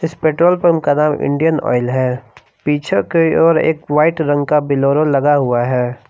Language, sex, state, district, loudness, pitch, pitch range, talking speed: Hindi, male, Jharkhand, Palamu, -15 LUFS, 150 Hz, 135-160 Hz, 185 wpm